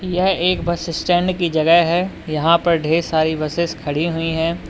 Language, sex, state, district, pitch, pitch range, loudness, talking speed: Hindi, male, Uttar Pradesh, Lalitpur, 170 Hz, 160-175 Hz, -18 LUFS, 190 wpm